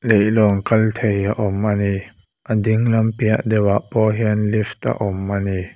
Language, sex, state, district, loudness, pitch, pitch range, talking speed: Mizo, male, Mizoram, Aizawl, -18 LUFS, 105 Hz, 100-110 Hz, 175 wpm